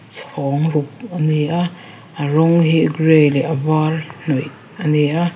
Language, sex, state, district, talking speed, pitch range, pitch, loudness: Mizo, female, Mizoram, Aizawl, 155 wpm, 145-165 Hz, 155 Hz, -17 LUFS